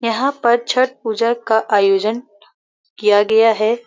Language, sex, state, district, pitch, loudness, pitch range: Hindi, female, Uttar Pradesh, Varanasi, 225 Hz, -16 LUFS, 215-240 Hz